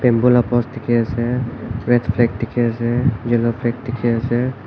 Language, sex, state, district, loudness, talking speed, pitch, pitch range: Nagamese, male, Nagaland, Kohima, -18 LUFS, 140 wpm, 120 Hz, 115-120 Hz